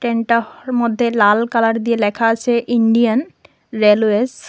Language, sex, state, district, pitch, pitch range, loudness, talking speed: Bengali, female, Tripura, West Tripura, 230 Hz, 225-240 Hz, -16 LUFS, 135 wpm